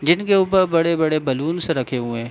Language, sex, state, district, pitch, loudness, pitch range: Hindi, male, Jharkhand, Sahebganj, 165 Hz, -19 LUFS, 130-175 Hz